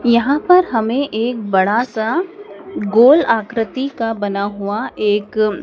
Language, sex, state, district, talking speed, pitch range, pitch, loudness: Hindi, male, Madhya Pradesh, Dhar, 130 wpm, 210-270 Hz, 225 Hz, -16 LUFS